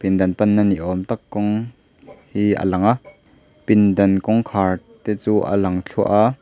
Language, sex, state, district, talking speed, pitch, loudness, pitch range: Mizo, male, Mizoram, Aizawl, 170 wpm, 105 Hz, -19 LUFS, 95-110 Hz